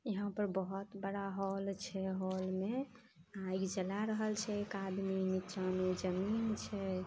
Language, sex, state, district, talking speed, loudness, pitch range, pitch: Maithili, female, Bihar, Samastipur, 155 wpm, -39 LUFS, 185-205 Hz, 195 Hz